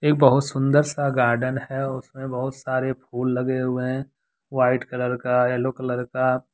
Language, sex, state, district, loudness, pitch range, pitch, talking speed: Hindi, male, Jharkhand, Deoghar, -23 LUFS, 125-135 Hz, 130 Hz, 175 wpm